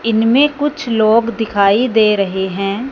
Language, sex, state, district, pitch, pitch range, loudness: Hindi, male, Punjab, Fazilka, 225 Hz, 200-245 Hz, -14 LUFS